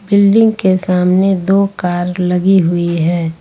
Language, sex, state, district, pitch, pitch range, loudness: Hindi, female, Jharkhand, Ranchi, 180 Hz, 175-195 Hz, -13 LUFS